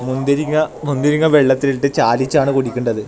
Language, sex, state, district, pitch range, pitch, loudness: Malayalam, male, Kerala, Kasaragod, 130-145 Hz, 140 Hz, -16 LUFS